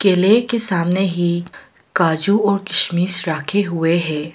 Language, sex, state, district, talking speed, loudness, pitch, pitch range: Hindi, female, Arunachal Pradesh, Papum Pare, 140 wpm, -16 LUFS, 180 Hz, 170-200 Hz